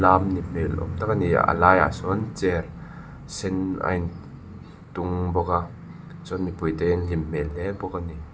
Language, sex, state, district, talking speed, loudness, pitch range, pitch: Mizo, male, Mizoram, Aizawl, 175 wpm, -24 LUFS, 85-95 Hz, 90 Hz